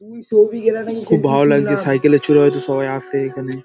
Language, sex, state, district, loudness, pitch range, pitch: Bengali, male, West Bengal, Paschim Medinipur, -16 LUFS, 135-210 Hz, 145 Hz